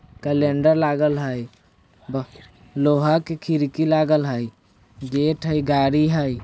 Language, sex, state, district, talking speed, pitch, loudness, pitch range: Bajjika, male, Bihar, Vaishali, 120 wpm, 145 Hz, -21 LUFS, 120-155 Hz